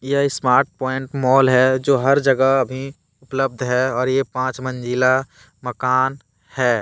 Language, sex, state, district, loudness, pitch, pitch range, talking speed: Hindi, male, Jharkhand, Deoghar, -18 LUFS, 130 Hz, 125-135 Hz, 150 wpm